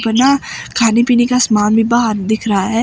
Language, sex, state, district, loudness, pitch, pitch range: Hindi, female, Himachal Pradesh, Shimla, -13 LUFS, 225 Hz, 215-240 Hz